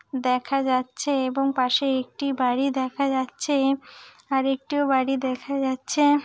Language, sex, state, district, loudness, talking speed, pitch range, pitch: Bengali, female, West Bengal, Purulia, -24 LUFS, 125 wpm, 260-280 Hz, 270 Hz